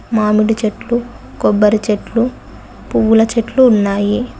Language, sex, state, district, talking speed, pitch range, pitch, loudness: Telugu, female, Telangana, Mahabubabad, 95 wpm, 210-235 Hz, 220 Hz, -14 LUFS